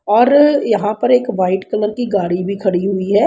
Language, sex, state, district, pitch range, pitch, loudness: Hindi, female, Haryana, Rohtak, 190-240 Hz, 210 Hz, -15 LUFS